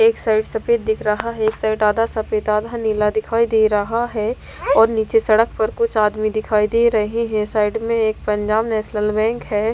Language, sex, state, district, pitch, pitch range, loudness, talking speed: Hindi, female, Haryana, Rohtak, 220 Hz, 215-230 Hz, -18 LUFS, 205 wpm